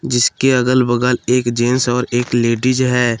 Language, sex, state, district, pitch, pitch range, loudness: Hindi, male, Jharkhand, Palamu, 125 Hz, 120-125 Hz, -15 LUFS